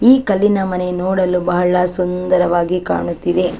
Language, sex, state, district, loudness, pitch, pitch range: Kannada, female, Karnataka, Chamarajanagar, -16 LUFS, 180 Hz, 180-185 Hz